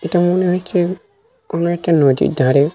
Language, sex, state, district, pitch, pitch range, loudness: Bengali, male, West Bengal, North 24 Parganas, 175 Hz, 160-185 Hz, -16 LUFS